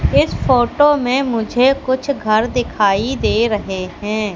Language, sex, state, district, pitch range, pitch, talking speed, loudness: Hindi, female, Madhya Pradesh, Katni, 210-260 Hz, 235 Hz, 140 wpm, -16 LUFS